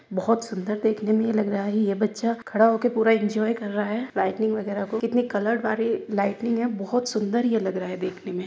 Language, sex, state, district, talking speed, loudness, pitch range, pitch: Hindi, female, Uttar Pradesh, Hamirpur, 240 wpm, -24 LUFS, 200-230 Hz, 215 Hz